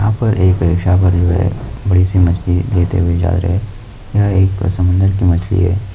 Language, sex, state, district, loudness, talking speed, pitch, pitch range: Hindi, male, Rajasthan, Nagaur, -14 LUFS, 200 wpm, 95 Hz, 90-100 Hz